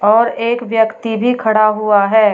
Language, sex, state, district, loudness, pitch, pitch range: Hindi, female, Uttar Pradesh, Shamli, -14 LUFS, 220 Hz, 215-230 Hz